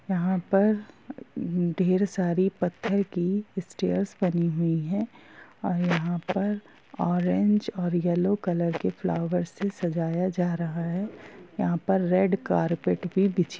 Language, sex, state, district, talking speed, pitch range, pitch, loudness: Hindi, female, Bihar, Gopalganj, 130 wpm, 175-195 Hz, 185 Hz, -27 LUFS